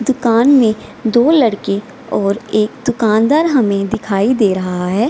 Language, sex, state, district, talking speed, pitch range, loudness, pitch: Hindi, female, Bihar, Gaya, 155 wpm, 205-255 Hz, -14 LUFS, 225 Hz